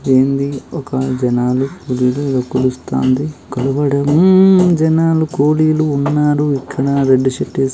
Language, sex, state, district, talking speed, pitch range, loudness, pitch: Telugu, male, Andhra Pradesh, Krishna, 85 wpm, 130-150 Hz, -14 LUFS, 140 Hz